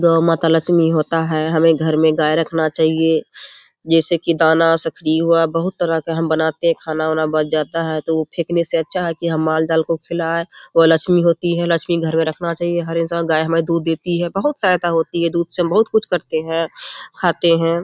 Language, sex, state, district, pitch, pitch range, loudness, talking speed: Hindi, female, Bihar, Kishanganj, 165 Hz, 160-170 Hz, -17 LUFS, 225 wpm